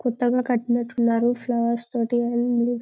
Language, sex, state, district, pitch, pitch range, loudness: Telugu, female, Telangana, Karimnagar, 240 Hz, 235-245 Hz, -23 LUFS